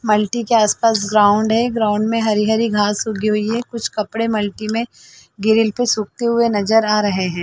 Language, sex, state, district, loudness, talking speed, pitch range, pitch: Hindi, female, Chhattisgarh, Bilaspur, -17 LUFS, 200 wpm, 210-230 Hz, 220 Hz